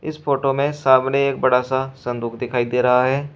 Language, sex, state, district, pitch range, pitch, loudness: Hindi, male, Uttar Pradesh, Shamli, 125-140 Hz, 130 Hz, -19 LUFS